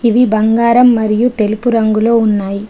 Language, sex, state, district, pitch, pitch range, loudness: Telugu, female, Telangana, Adilabad, 225 Hz, 215-235 Hz, -12 LUFS